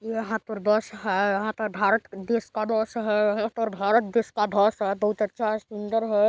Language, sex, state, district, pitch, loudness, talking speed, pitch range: Hindi, female, Chhattisgarh, Balrampur, 215 Hz, -25 LUFS, 220 wpm, 210-225 Hz